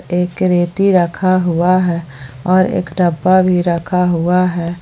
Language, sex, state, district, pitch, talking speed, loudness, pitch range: Hindi, female, Jharkhand, Palamu, 180 Hz, 150 wpm, -14 LUFS, 170-185 Hz